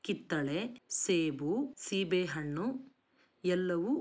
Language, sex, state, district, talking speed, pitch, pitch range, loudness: Kannada, female, Karnataka, Dakshina Kannada, 60 wpm, 185 Hz, 170-255 Hz, -34 LUFS